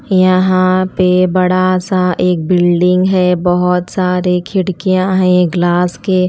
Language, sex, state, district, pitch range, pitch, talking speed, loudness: Hindi, female, Chandigarh, Chandigarh, 180-185 Hz, 185 Hz, 125 wpm, -12 LUFS